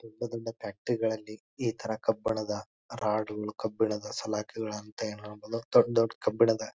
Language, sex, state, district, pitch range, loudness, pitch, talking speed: Kannada, male, Karnataka, Bijapur, 105-115 Hz, -31 LUFS, 110 Hz, 140 wpm